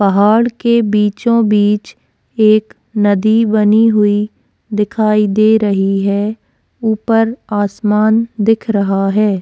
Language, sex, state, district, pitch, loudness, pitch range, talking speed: Hindi, female, Uttarakhand, Tehri Garhwal, 215 Hz, -13 LUFS, 205-225 Hz, 100 wpm